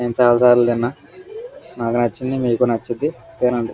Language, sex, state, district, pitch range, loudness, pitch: Telugu, male, Andhra Pradesh, Guntur, 120-130 Hz, -18 LUFS, 120 Hz